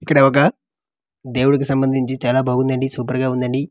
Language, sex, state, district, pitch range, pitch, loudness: Telugu, male, Andhra Pradesh, Manyam, 125-135 Hz, 130 Hz, -18 LUFS